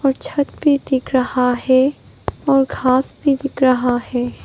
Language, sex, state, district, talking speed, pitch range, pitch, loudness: Hindi, female, Arunachal Pradesh, Papum Pare, 150 wpm, 255-280 Hz, 265 Hz, -17 LUFS